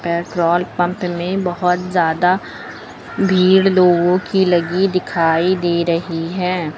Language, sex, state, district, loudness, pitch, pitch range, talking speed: Hindi, female, Uttar Pradesh, Lucknow, -16 LUFS, 180 Hz, 170-185 Hz, 115 wpm